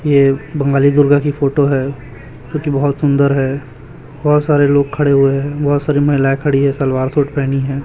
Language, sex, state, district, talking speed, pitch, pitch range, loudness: Hindi, male, Chhattisgarh, Raipur, 190 wpm, 140 Hz, 135-145 Hz, -14 LUFS